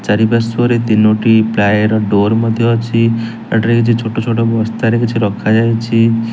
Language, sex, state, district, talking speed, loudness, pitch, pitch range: Odia, male, Odisha, Nuapada, 115 wpm, -13 LUFS, 115 Hz, 110-115 Hz